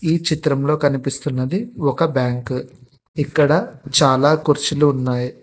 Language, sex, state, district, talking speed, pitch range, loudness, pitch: Telugu, male, Telangana, Hyderabad, 100 wpm, 130-155 Hz, -18 LUFS, 145 Hz